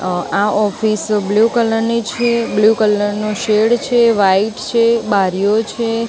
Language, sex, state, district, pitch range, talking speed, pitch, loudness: Gujarati, female, Gujarat, Gandhinagar, 205-230 Hz, 155 wpm, 215 Hz, -15 LUFS